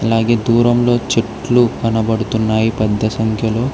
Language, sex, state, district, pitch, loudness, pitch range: Telugu, male, Telangana, Hyderabad, 115 Hz, -15 LUFS, 110-120 Hz